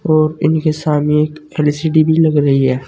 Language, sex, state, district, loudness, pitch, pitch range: Hindi, male, Uttar Pradesh, Saharanpur, -14 LUFS, 155 Hz, 150-155 Hz